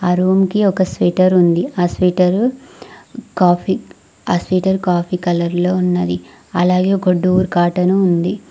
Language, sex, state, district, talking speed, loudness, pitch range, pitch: Telugu, female, Telangana, Mahabubabad, 140 wpm, -15 LUFS, 175-185 Hz, 180 Hz